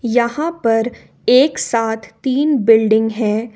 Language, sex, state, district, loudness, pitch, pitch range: Hindi, female, Jharkhand, Ranchi, -16 LUFS, 230 Hz, 225-260 Hz